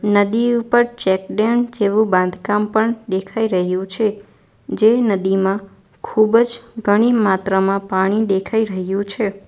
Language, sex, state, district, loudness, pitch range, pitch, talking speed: Gujarati, female, Gujarat, Valsad, -17 LUFS, 195-225 Hz, 210 Hz, 120 wpm